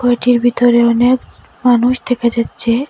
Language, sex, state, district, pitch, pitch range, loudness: Bengali, female, Assam, Hailakandi, 245 Hz, 235-245 Hz, -13 LUFS